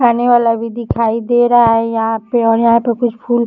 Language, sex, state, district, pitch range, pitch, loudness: Hindi, female, Uttar Pradesh, Deoria, 230-240 Hz, 235 Hz, -13 LUFS